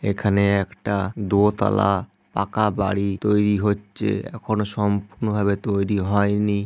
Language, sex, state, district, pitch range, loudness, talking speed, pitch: Bengali, male, West Bengal, Malda, 100-105 Hz, -22 LUFS, 115 wpm, 100 Hz